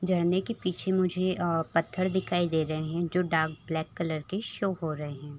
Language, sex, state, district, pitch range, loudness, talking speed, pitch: Hindi, female, Chhattisgarh, Raigarh, 160-185 Hz, -29 LUFS, 220 wpm, 170 Hz